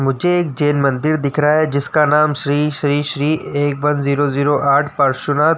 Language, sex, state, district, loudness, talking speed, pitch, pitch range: Hindi, male, Uttar Pradesh, Jyotiba Phule Nagar, -16 LUFS, 205 wpm, 145 Hz, 140-150 Hz